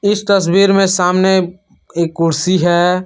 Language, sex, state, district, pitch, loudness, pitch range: Hindi, male, Jharkhand, Palamu, 185 Hz, -13 LUFS, 175-195 Hz